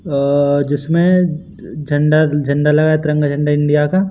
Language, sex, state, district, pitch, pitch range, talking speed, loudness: Hindi, male, Madhya Pradesh, Katni, 150 Hz, 145-160 Hz, 130 wpm, -14 LUFS